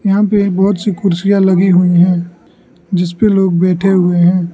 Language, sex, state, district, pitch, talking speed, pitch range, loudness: Hindi, male, Arunachal Pradesh, Lower Dibang Valley, 185 Hz, 185 wpm, 175-195 Hz, -12 LUFS